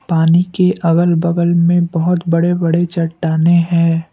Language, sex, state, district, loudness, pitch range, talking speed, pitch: Hindi, male, Assam, Kamrup Metropolitan, -14 LUFS, 165-175 Hz, 145 wpm, 170 Hz